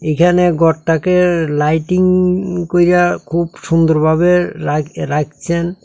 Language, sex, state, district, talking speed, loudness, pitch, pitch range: Bengali, male, Tripura, South Tripura, 80 wpm, -14 LUFS, 170 Hz, 155-180 Hz